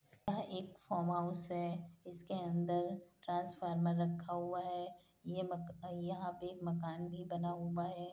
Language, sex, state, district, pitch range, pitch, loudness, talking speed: Hindi, female, Uttar Pradesh, Hamirpur, 175-180 Hz, 175 Hz, -41 LUFS, 155 wpm